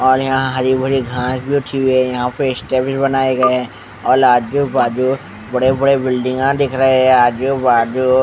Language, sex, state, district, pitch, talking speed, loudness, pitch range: Hindi, male, Bihar, West Champaran, 130 Hz, 160 wpm, -15 LUFS, 125-135 Hz